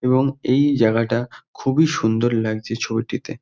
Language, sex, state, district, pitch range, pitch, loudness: Bengali, male, West Bengal, North 24 Parganas, 115-140 Hz, 120 Hz, -20 LUFS